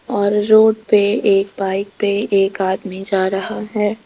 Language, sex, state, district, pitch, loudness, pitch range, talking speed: Hindi, female, Rajasthan, Jaipur, 205 Hz, -16 LUFS, 195-215 Hz, 165 wpm